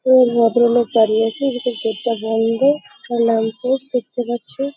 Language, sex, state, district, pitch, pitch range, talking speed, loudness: Bengali, female, West Bengal, Kolkata, 240 Hz, 225-255 Hz, 165 wpm, -18 LUFS